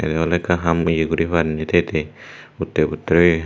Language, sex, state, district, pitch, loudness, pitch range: Chakma, male, Tripura, Dhalai, 80 Hz, -19 LUFS, 80-85 Hz